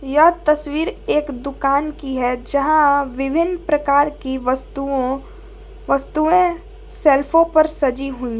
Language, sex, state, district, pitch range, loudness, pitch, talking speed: Hindi, female, Jharkhand, Garhwa, 270-310 Hz, -18 LUFS, 285 Hz, 120 wpm